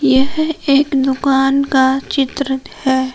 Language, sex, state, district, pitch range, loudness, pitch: Hindi, female, Jharkhand, Palamu, 265-280 Hz, -15 LUFS, 270 Hz